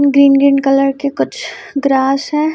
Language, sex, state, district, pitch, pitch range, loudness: Hindi, female, Chhattisgarh, Raipur, 275 Hz, 275-280 Hz, -13 LUFS